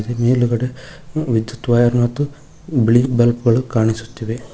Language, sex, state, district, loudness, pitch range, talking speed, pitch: Kannada, male, Karnataka, Koppal, -17 LUFS, 115-130 Hz, 105 wpm, 120 Hz